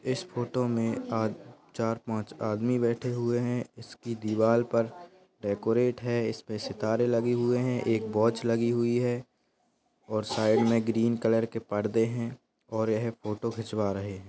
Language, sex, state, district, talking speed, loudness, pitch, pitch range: Hindi, male, Bihar, Bhagalpur, 95 wpm, -29 LUFS, 115 Hz, 110-120 Hz